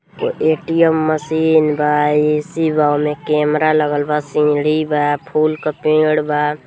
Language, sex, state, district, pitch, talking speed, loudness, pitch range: Bhojpuri, female, Uttar Pradesh, Gorakhpur, 150 Hz, 170 wpm, -16 LUFS, 150-155 Hz